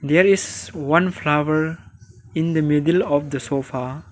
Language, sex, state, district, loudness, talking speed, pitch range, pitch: English, male, Arunachal Pradesh, Lower Dibang Valley, -20 LUFS, 145 wpm, 140-165 Hz, 150 Hz